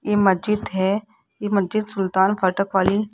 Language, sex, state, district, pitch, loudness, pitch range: Hindi, female, Rajasthan, Jaipur, 200 Hz, -21 LUFS, 190-210 Hz